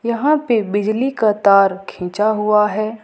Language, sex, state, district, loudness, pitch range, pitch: Hindi, female, Jharkhand, Ranchi, -16 LUFS, 205-230 Hz, 215 Hz